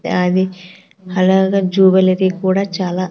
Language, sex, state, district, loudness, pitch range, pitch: Telugu, female, Andhra Pradesh, Sri Satya Sai, -15 LUFS, 185-190 Hz, 185 Hz